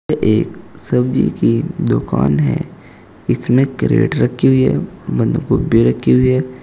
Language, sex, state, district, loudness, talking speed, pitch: Hindi, male, Uttar Pradesh, Saharanpur, -15 LUFS, 145 wpm, 120 Hz